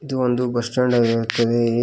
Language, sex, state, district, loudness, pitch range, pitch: Kannada, male, Karnataka, Koppal, -20 LUFS, 115-125 Hz, 120 Hz